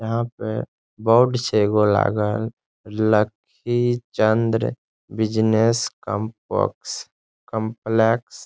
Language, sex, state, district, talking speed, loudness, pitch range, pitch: Maithili, male, Bihar, Saharsa, 85 wpm, -21 LUFS, 105-115 Hz, 110 Hz